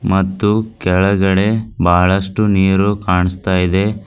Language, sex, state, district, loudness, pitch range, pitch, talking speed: Kannada, female, Karnataka, Bidar, -15 LUFS, 95-105 Hz, 95 Hz, 90 wpm